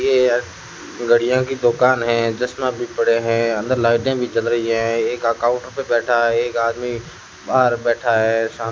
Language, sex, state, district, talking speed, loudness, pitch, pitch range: Hindi, male, Rajasthan, Jaisalmer, 185 wpm, -18 LUFS, 120 Hz, 115-125 Hz